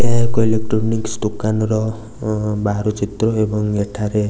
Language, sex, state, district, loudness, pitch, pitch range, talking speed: Odia, male, Odisha, Nuapada, -19 LUFS, 110 Hz, 105-110 Hz, 140 wpm